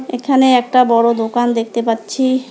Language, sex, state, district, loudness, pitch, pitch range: Bengali, female, West Bengal, Alipurduar, -14 LUFS, 245 Hz, 230-255 Hz